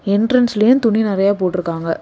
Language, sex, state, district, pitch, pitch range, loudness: Tamil, female, Tamil Nadu, Kanyakumari, 205 Hz, 185-225 Hz, -15 LUFS